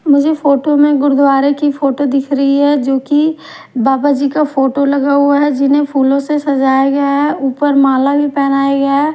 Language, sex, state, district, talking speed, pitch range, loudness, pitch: Hindi, female, Maharashtra, Mumbai Suburban, 190 wpm, 275-290 Hz, -12 LUFS, 280 Hz